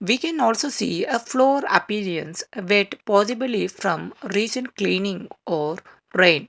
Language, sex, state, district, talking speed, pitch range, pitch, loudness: English, male, Karnataka, Bangalore, 130 wpm, 195-250 Hz, 210 Hz, -22 LUFS